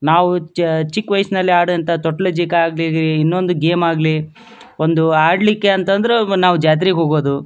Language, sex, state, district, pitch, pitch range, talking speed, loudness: Kannada, male, Karnataka, Dharwad, 170 Hz, 160-190 Hz, 120 wpm, -15 LUFS